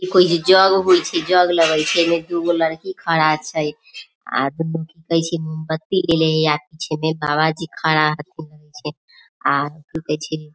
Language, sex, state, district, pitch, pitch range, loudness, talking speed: Maithili, female, Bihar, Samastipur, 160 Hz, 155-170 Hz, -18 LUFS, 140 wpm